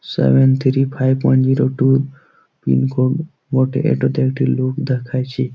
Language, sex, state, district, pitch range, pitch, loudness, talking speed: Bengali, male, West Bengal, Jalpaiguri, 130-135 Hz, 130 Hz, -17 LUFS, 130 wpm